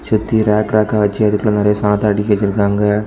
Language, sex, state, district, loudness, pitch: Tamil, male, Tamil Nadu, Kanyakumari, -15 LUFS, 105 Hz